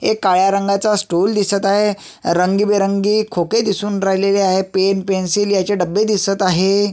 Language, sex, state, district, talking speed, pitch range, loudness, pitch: Marathi, male, Maharashtra, Sindhudurg, 145 wpm, 190-205 Hz, -16 LUFS, 200 Hz